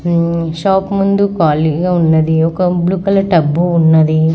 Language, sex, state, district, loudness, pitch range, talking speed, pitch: Telugu, male, Andhra Pradesh, Guntur, -13 LUFS, 160-185 Hz, 140 wpm, 170 Hz